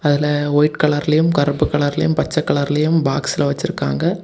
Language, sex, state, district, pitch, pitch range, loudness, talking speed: Tamil, male, Tamil Nadu, Kanyakumari, 145 Hz, 145-150 Hz, -17 LUFS, 125 wpm